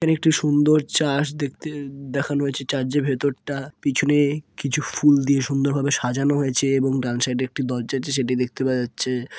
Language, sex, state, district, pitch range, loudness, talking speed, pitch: Bengali, male, West Bengal, Purulia, 130-145 Hz, -22 LUFS, 185 wpm, 140 Hz